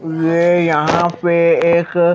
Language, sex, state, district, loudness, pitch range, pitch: Hindi, male, Maharashtra, Mumbai Suburban, -14 LUFS, 165-175 Hz, 170 Hz